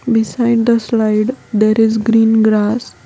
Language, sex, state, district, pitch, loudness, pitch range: English, female, Gujarat, Valsad, 225 Hz, -13 LUFS, 220-235 Hz